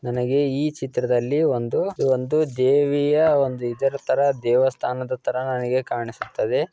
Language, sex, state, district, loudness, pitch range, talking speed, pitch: Kannada, male, Karnataka, Dakshina Kannada, -22 LUFS, 125-145 Hz, 105 wpm, 130 Hz